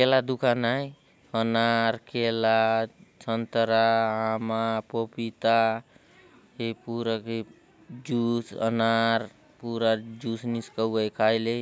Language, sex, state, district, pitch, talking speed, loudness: Halbi, male, Chhattisgarh, Bastar, 115 Hz, 95 wpm, -26 LUFS